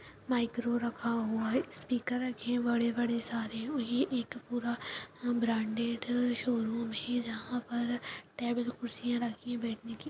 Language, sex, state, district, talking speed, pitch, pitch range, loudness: Hindi, female, Uttarakhand, Tehri Garhwal, 130 wpm, 240 Hz, 235-245 Hz, -34 LUFS